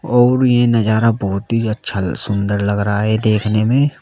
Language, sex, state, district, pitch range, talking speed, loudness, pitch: Hindi, male, Uttar Pradesh, Saharanpur, 100-120 Hz, 180 wpm, -16 LUFS, 110 Hz